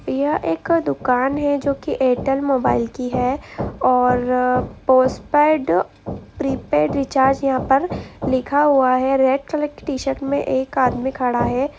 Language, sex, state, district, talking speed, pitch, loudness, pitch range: Hindi, female, Andhra Pradesh, Anantapur, 140 wpm, 265 Hz, -19 LUFS, 255-280 Hz